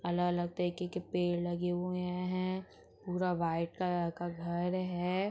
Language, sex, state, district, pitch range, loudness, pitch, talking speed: Hindi, female, Uttar Pradesh, Etah, 175-180 Hz, -35 LUFS, 180 Hz, 145 wpm